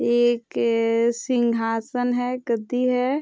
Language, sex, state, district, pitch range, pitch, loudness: Hindi, female, Bihar, Vaishali, 230-250 Hz, 240 Hz, -22 LUFS